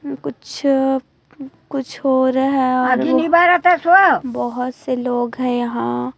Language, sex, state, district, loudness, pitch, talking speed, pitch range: Hindi, female, Chhattisgarh, Raipur, -17 LUFS, 265 Hz, 115 wpm, 250-280 Hz